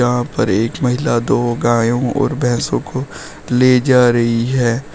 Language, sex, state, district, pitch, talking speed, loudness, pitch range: Hindi, male, Uttar Pradesh, Shamli, 125 Hz, 155 wpm, -15 LUFS, 120-125 Hz